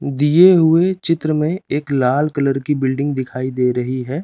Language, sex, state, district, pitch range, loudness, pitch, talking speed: Hindi, male, Chandigarh, Chandigarh, 130-160 Hz, -16 LUFS, 145 Hz, 185 wpm